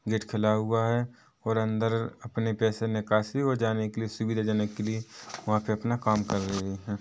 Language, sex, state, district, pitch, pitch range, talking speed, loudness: Hindi, male, Chhattisgarh, Korba, 110 Hz, 105-115 Hz, 195 wpm, -29 LUFS